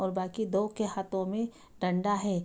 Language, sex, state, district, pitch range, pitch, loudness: Hindi, female, Bihar, Madhepura, 190-215 Hz, 200 Hz, -32 LUFS